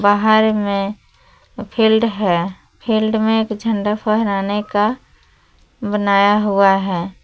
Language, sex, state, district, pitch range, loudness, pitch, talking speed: Hindi, female, Jharkhand, Palamu, 200-220 Hz, -17 LUFS, 210 Hz, 110 wpm